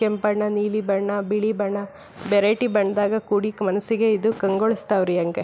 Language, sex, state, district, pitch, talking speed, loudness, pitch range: Kannada, female, Karnataka, Belgaum, 210 Hz, 155 wpm, -22 LUFS, 200-215 Hz